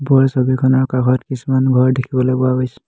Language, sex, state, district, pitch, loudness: Assamese, male, Assam, Hailakandi, 130 Hz, -15 LUFS